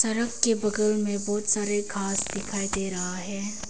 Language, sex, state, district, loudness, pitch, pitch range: Hindi, female, Arunachal Pradesh, Papum Pare, -26 LUFS, 205 Hz, 200-210 Hz